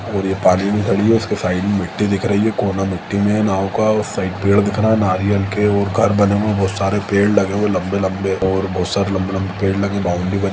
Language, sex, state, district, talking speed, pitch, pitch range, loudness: Hindi, male, Chhattisgarh, Sukma, 275 wpm, 100 Hz, 95-105 Hz, -17 LUFS